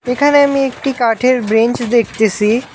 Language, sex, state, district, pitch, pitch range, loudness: Bengali, male, West Bengal, Alipurduar, 245 Hz, 225-270 Hz, -13 LUFS